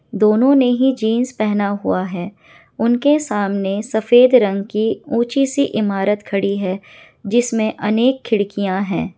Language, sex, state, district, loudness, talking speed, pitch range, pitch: Hindi, female, Bihar, Kishanganj, -17 LUFS, 135 wpm, 200-240 Hz, 215 Hz